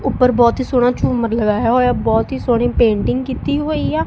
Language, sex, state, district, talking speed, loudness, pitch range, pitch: Punjabi, female, Punjab, Kapurthala, 205 wpm, -16 LUFS, 230-255 Hz, 245 Hz